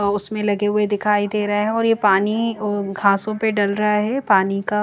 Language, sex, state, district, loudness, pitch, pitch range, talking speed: Hindi, female, Bihar, Kaimur, -19 LUFS, 210 Hz, 205-215 Hz, 210 wpm